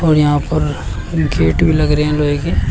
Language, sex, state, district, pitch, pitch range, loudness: Hindi, male, Uttar Pradesh, Shamli, 150 Hz, 145-150 Hz, -15 LUFS